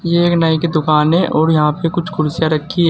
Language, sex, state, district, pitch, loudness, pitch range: Hindi, male, Uttar Pradesh, Saharanpur, 160 Hz, -15 LUFS, 155-170 Hz